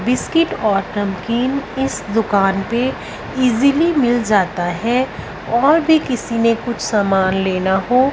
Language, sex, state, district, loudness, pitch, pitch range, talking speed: Hindi, female, Punjab, Fazilka, -17 LUFS, 235 Hz, 195-260 Hz, 135 wpm